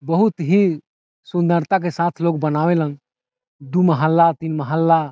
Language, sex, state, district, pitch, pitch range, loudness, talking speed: Bhojpuri, male, Bihar, Saran, 165 Hz, 155-175 Hz, -18 LUFS, 130 wpm